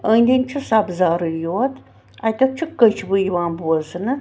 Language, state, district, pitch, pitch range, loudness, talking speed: Kashmiri, Punjab, Kapurthala, 220 Hz, 175-255 Hz, -19 LUFS, 100 wpm